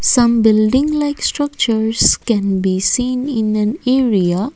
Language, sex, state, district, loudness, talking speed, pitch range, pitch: English, female, Assam, Kamrup Metropolitan, -15 LUFS, 130 wpm, 215-260 Hz, 230 Hz